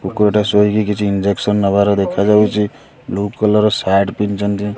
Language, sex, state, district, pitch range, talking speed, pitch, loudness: Odia, male, Odisha, Khordha, 100-105 Hz, 140 wpm, 105 Hz, -15 LUFS